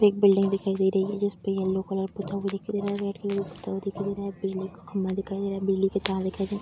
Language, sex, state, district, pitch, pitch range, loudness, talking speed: Hindi, female, Bihar, Darbhanga, 195 Hz, 195-200 Hz, -28 LUFS, 335 wpm